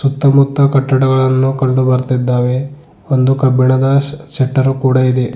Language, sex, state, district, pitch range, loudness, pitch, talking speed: Kannada, male, Karnataka, Bidar, 130-140 Hz, -13 LUFS, 130 Hz, 110 wpm